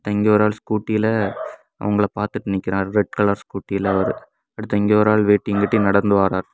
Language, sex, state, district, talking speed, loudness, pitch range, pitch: Tamil, male, Tamil Nadu, Kanyakumari, 175 wpm, -19 LUFS, 100-105 Hz, 105 Hz